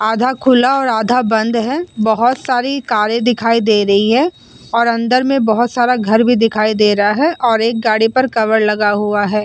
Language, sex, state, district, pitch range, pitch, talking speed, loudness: Hindi, female, Uttar Pradesh, Muzaffarnagar, 220-250 Hz, 230 Hz, 205 wpm, -14 LUFS